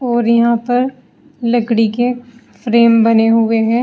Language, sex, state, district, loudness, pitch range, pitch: Hindi, female, Uttar Pradesh, Saharanpur, -13 LUFS, 230-245 Hz, 235 Hz